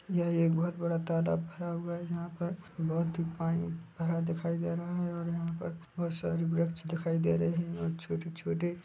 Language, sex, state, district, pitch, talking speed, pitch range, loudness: Hindi, male, Chhattisgarh, Bilaspur, 170 Hz, 210 wpm, 165-170 Hz, -33 LUFS